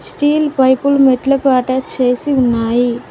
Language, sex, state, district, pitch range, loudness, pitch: Telugu, female, Telangana, Mahabubabad, 250-275 Hz, -13 LUFS, 260 Hz